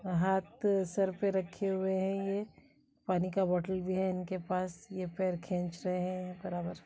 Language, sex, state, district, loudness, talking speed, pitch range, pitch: Kumaoni, female, Uttarakhand, Uttarkashi, -34 LUFS, 175 wpm, 180-190 Hz, 185 Hz